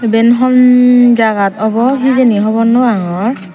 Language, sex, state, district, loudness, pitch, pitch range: Chakma, female, Tripura, Unakoti, -10 LUFS, 235 Hz, 220-250 Hz